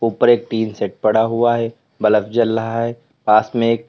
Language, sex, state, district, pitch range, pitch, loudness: Hindi, male, Uttar Pradesh, Lalitpur, 110-120 Hz, 115 Hz, -17 LUFS